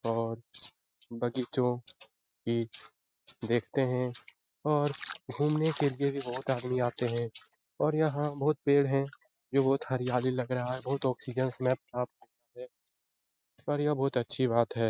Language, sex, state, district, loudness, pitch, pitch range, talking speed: Hindi, male, Bihar, Lakhisarai, -31 LUFS, 130 Hz, 120-140 Hz, 135 wpm